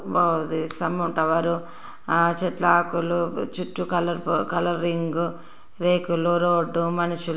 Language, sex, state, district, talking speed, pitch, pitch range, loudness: Telugu, female, Andhra Pradesh, Srikakulam, 105 wpm, 170 Hz, 170-175 Hz, -24 LUFS